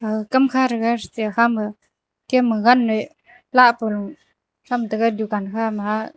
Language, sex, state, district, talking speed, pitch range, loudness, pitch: Wancho, female, Arunachal Pradesh, Longding, 125 wpm, 215-245 Hz, -19 LUFS, 225 Hz